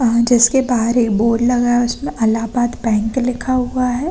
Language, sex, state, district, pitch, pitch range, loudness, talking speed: Hindi, female, Chhattisgarh, Balrampur, 240 Hz, 230-250 Hz, -16 LUFS, 190 wpm